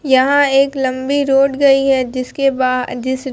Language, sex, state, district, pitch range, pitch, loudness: Hindi, female, Bihar, Katihar, 255-275 Hz, 270 Hz, -14 LUFS